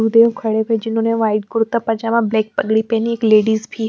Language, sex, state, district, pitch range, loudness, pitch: Hindi, female, Chandigarh, Chandigarh, 220-230 Hz, -17 LUFS, 225 Hz